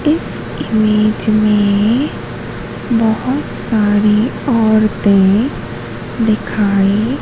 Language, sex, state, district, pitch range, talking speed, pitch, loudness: Hindi, female, Madhya Pradesh, Katni, 205-225 Hz, 60 wpm, 215 Hz, -14 LUFS